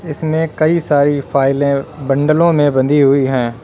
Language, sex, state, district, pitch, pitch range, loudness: Hindi, male, Uttar Pradesh, Lalitpur, 145 Hz, 135-155 Hz, -14 LUFS